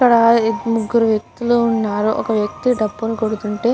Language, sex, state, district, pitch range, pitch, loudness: Telugu, female, Andhra Pradesh, Guntur, 215-235 Hz, 225 Hz, -17 LUFS